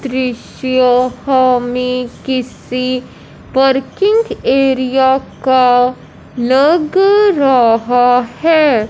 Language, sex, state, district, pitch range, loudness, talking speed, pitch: Hindi, male, Punjab, Fazilka, 250-275 Hz, -13 LUFS, 60 wpm, 260 Hz